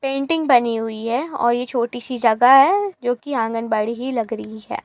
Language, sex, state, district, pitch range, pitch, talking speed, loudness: Hindi, female, Uttar Pradesh, Gorakhpur, 230-270 Hz, 245 Hz, 220 wpm, -19 LUFS